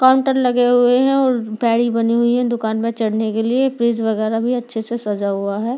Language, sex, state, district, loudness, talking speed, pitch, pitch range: Hindi, female, Delhi, New Delhi, -17 LUFS, 205 wpm, 235 Hz, 220-245 Hz